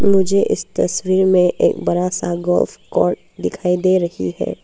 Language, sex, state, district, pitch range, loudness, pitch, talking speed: Hindi, female, Arunachal Pradesh, Papum Pare, 175-185 Hz, -17 LUFS, 180 Hz, 170 wpm